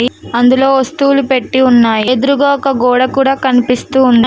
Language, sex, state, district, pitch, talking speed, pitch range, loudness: Telugu, female, Telangana, Mahabubabad, 260 Hz, 140 wpm, 245-270 Hz, -11 LUFS